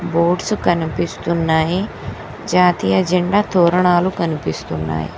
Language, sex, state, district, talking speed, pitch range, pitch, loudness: Telugu, female, Telangana, Mahabubabad, 70 wpm, 110-180 Hz, 170 Hz, -17 LUFS